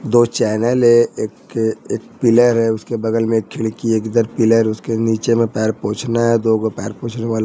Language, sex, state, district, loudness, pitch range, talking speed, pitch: Hindi, male, Jharkhand, Ranchi, -17 LUFS, 110-115 Hz, 210 wpm, 115 Hz